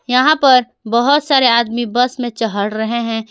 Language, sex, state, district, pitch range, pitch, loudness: Hindi, female, Jharkhand, Garhwa, 230-255 Hz, 240 Hz, -14 LUFS